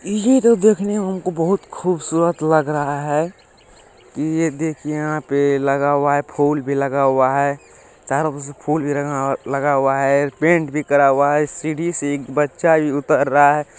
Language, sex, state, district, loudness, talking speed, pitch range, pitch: Maithili, male, Bihar, Supaul, -18 LUFS, 190 wpm, 140-160 Hz, 150 Hz